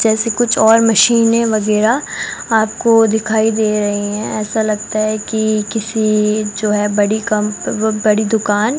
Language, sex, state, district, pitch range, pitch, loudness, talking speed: Hindi, female, Rajasthan, Bikaner, 210-225 Hz, 215 Hz, -14 LUFS, 150 wpm